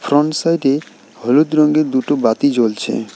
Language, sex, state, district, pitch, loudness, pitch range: Bengali, male, West Bengal, Alipurduar, 140 Hz, -15 LUFS, 120-155 Hz